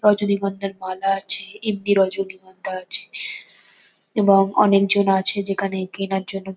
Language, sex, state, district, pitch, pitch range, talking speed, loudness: Bengali, female, West Bengal, North 24 Parganas, 195 Hz, 190-200 Hz, 110 wpm, -21 LUFS